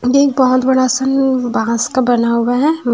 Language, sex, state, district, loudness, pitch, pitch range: Hindi, female, Punjab, Fazilka, -14 LUFS, 255 Hz, 240-265 Hz